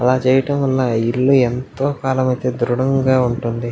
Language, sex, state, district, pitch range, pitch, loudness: Telugu, male, Andhra Pradesh, Anantapur, 120-130 Hz, 130 Hz, -17 LUFS